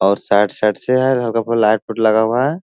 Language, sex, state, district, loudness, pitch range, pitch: Hindi, male, Bihar, Jahanabad, -16 LUFS, 105-125 Hz, 110 Hz